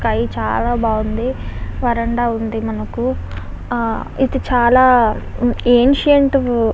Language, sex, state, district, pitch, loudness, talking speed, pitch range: Telugu, female, Andhra Pradesh, Visakhapatnam, 240 Hz, -16 LUFS, 100 wpm, 220-250 Hz